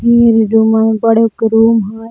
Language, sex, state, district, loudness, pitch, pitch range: Magahi, female, Jharkhand, Palamu, -11 LUFS, 225 Hz, 220-230 Hz